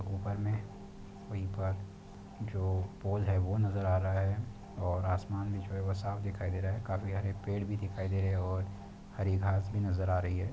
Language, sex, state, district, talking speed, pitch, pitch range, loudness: Hindi, male, Jharkhand, Sahebganj, 200 wpm, 100 Hz, 95-100 Hz, -35 LUFS